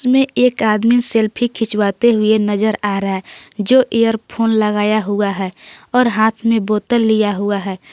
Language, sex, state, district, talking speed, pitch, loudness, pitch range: Hindi, female, Jharkhand, Garhwa, 175 wpm, 220 Hz, -16 LUFS, 210-235 Hz